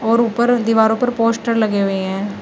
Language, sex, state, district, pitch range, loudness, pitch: Hindi, female, Uttar Pradesh, Shamli, 205-235 Hz, -16 LUFS, 225 Hz